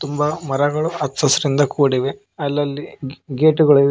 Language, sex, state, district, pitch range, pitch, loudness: Kannada, male, Karnataka, Koppal, 140-155 Hz, 145 Hz, -18 LUFS